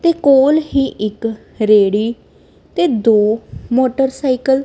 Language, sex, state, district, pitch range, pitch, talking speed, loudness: Punjabi, female, Punjab, Kapurthala, 220-275 Hz, 255 Hz, 115 wpm, -15 LUFS